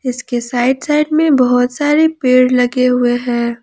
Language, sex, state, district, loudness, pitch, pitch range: Hindi, female, Jharkhand, Palamu, -13 LUFS, 255 Hz, 245-290 Hz